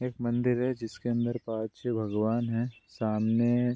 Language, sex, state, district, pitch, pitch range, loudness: Hindi, male, Bihar, Bhagalpur, 120 Hz, 110-120 Hz, -30 LUFS